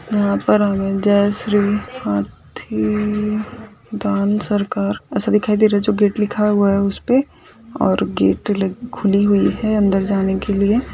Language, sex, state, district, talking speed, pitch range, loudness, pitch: Hindi, female, Maharashtra, Chandrapur, 160 wpm, 200-210 Hz, -18 LUFS, 205 Hz